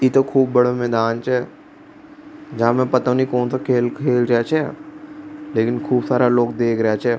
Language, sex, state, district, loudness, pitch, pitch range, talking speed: Rajasthani, male, Rajasthan, Churu, -18 LUFS, 125 Hz, 120-155 Hz, 165 wpm